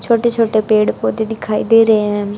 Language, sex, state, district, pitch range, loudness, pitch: Hindi, female, Haryana, Charkhi Dadri, 205-225 Hz, -14 LUFS, 215 Hz